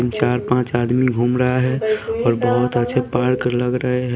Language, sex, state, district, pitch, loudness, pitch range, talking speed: Hindi, male, Haryana, Rohtak, 125 Hz, -18 LUFS, 120-125 Hz, 175 wpm